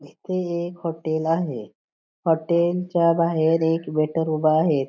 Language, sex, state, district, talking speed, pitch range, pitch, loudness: Marathi, female, Maharashtra, Pune, 135 wpm, 155-170 Hz, 165 Hz, -22 LUFS